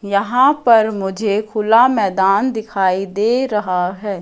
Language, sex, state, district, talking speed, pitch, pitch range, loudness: Hindi, female, Madhya Pradesh, Katni, 130 wpm, 210 Hz, 195-235 Hz, -16 LUFS